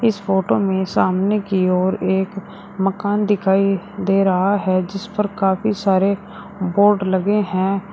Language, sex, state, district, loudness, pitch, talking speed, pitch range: Hindi, female, Uttar Pradesh, Shamli, -18 LUFS, 195 Hz, 145 wpm, 190-205 Hz